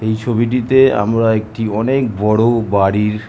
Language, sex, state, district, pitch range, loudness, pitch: Bengali, male, West Bengal, Jhargram, 105-120 Hz, -15 LUFS, 110 Hz